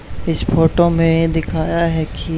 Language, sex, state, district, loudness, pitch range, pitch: Hindi, male, Haryana, Charkhi Dadri, -16 LUFS, 160-170 Hz, 165 Hz